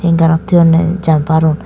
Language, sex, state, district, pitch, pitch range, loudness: Chakma, female, Tripura, Dhalai, 165 Hz, 160-170 Hz, -11 LUFS